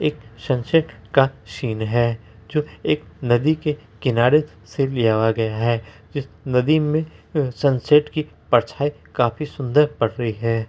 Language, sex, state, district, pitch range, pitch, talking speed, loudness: Hindi, male, Bihar, Araria, 115-150 Hz, 125 Hz, 150 wpm, -21 LUFS